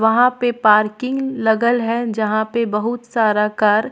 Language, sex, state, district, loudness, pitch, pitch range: Surgujia, female, Chhattisgarh, Sarguja, -17 LUFS, 225 Hz, 215-240 Hz